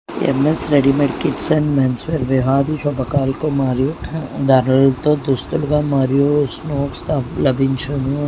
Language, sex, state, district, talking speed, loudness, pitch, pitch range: Telugu, male, Telangana, Nalgonda, 110 wpm, -17 LUFS, 140 Hz, 135-150 Hz